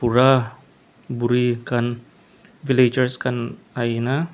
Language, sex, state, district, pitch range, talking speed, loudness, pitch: Nagamese, male, Nagaland, Dimapur, 120-130 Hz, 85 wpm, -21 LUFS, 125 Hz